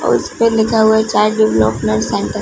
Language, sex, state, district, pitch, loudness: Hindi, female, Punjab, Fazilka, 220 Hz, -14 LUFS